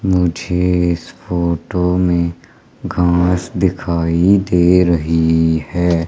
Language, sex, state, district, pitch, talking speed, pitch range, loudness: Hindi, male, Madhya Pradesh, Umaria, 90 Hz, 90 wpm, 85-90 Hz, -15 LUFS